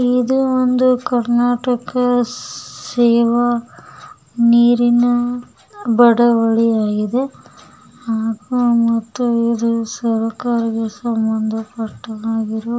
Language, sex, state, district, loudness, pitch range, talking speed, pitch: Kannada, female, Karnataka, Bellary, -16 LUFS, 225-245 Hz, 50 wpm, 235 Hz